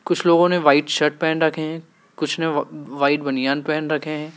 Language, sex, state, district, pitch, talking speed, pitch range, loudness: Hindi, male, Madhya Pradesh, Dhar, 155 Hz, 190 wpm, 145-165 Hz, -20 LUFS